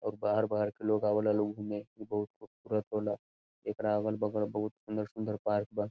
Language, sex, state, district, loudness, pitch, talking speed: Bhojpuri, male, Bihar, Saran, -34 LUFS, 105 Hz, 170 wpm